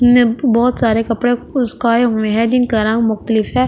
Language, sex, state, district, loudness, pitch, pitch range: Hindi, female, Delhi, New Delhi, -15 LUFS, 235 Hz, 225-245 Hz